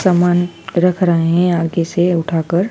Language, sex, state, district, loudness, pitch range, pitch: Hindi, female, Madhya Pradesh, Dhar, -15 LUFS, 170-180 Hz, 175 Hz